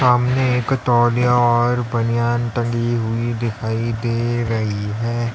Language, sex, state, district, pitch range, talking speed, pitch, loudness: Hindi, male, Uttar Pradesh, Lalitpur, 115-120 Hz, 125 wpm, 120 Hz, -19 LUFS